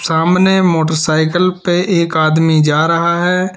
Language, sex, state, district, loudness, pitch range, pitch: Hindi, male, Uttar Pradesh, Lalitpur, -13 LUFS, 160-180 Hz, 170 Hz